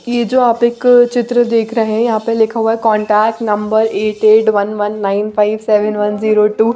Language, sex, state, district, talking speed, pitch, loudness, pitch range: Hindi, female, Bihar, Patna, 230 wpm, 220 Hz, -13 LUFS, 210-230 Hz